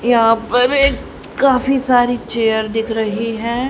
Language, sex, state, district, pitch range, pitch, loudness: Hindi, female, Haryana, Rohtak, 225-255 Hz, 240 Hz, -16 LUFS